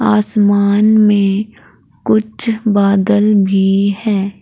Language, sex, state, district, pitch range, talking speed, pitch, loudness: Hindi, female, Uttar Pradesh, Saharanpur, 200-215 Hz, 80 wpm, 205 Hz, -13 LUFS